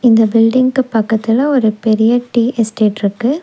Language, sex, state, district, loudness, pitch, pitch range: Tamil, female, Tamil Nadu, Nilgiris, -13 LUFS, 230 Hz, 220-245 Hz